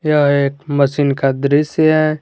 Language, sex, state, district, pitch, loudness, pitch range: Hindi, male, Jharkhand, Garhwa, 145 Hz, -15 LUFS, 140-155 Hz